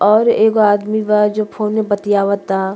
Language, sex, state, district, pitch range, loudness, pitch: Bhojpuri, female, Uttar Pradesh, Deoria, 205-215 Hz, -15 LUFS, 210 Hz